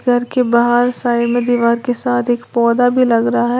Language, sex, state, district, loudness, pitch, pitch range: Hindi, female, Uttar Pradesh, Lalitpur, -15 LUFS, 240 Hz, 235-245 Hz